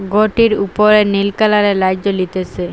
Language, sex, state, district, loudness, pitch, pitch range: Bengali, female, Assam, Hailakandi, -14 LUFS, 200 Hz, 190-210 Hz